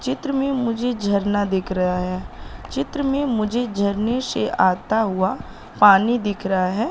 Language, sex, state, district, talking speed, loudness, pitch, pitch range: Hindi, female, Madhya Pradesh, Katni, 155 wpm, -21 LUFS, 210 Hz, 190-245 Hz